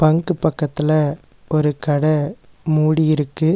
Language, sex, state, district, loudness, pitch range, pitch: Tamil, male, Tamil Nadu, Nilgiris, -18 LUFS, 150-155 Hz, 155 Hz